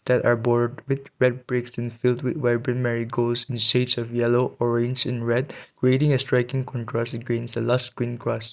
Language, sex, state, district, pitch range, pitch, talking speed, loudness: English, male, Nagaland, Kohima, 120-125 Hz, 120 Hz, 195 wpm, -20 LUFS